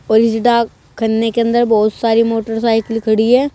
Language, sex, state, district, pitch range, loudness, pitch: Hindi, female, Uttar Pradesh, Saharanpur, 225-235 Hz, -14 LUFS, 225 Hz